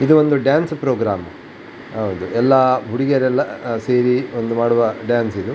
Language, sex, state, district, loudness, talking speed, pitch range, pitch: Kannada, male, Karnataka, Dakshina Kannada, -17 LUFS, 130 wpm, 115-135 Hz, 125 Hz